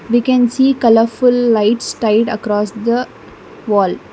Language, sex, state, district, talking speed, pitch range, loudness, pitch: English, female, Karnataka, Bangalore, 130 wpm, 215-245 Hz, -14 LUFS, 230 Hz